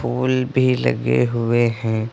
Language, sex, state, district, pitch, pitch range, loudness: Hindi, male, Uttar Pradesh, Lucknow, 120 Hz, 110-125 Hz, -19 LUFS